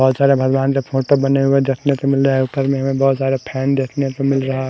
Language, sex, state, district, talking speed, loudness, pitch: Hindi, male, Haryana, Charkhi Dadri, 280 wpm, -17 LUFS, 135 Hz